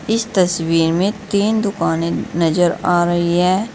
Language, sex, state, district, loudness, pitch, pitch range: Hindi, female, Uttar Pradesh, Saharanpur, -17 LUFS, 180 Hz, 170-205 Hz